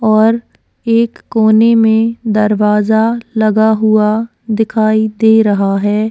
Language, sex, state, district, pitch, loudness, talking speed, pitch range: Hindi, female, Uttarakhand, Tehri Garhwal, 220 Hz, -12 LUFS, 110 wpm, 215-225 Hz